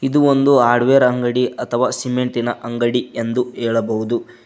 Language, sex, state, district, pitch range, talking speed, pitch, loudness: Kannada, male, Karnataka, Koppal, 120-125 Hz, 135 wpm, 120 Hz, -17 LUFS